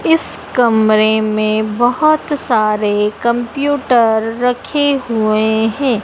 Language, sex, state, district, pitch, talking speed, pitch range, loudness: Hindi, female, Madhya Pradesh, Dhar, 235 Hz, 90 wpm, 215-275 Hz, -14 LUFS